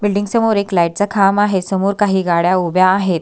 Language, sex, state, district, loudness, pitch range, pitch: Marathi, female, Maharashtra, Solapur, -15 LUFS, 185-205 Hz, 195 Hz